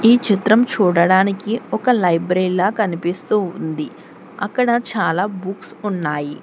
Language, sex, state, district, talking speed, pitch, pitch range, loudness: Telugu, female, Telangana, Hyderabad, 110 wpm, 195 Hz, 180-220 Hz, -18 LUFS